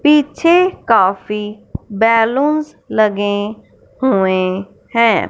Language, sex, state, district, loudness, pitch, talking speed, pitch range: Hindi, male, Punjab, Fazilka, -15 LUFS, 225 Hz, 70 wpm, 205-285 Hz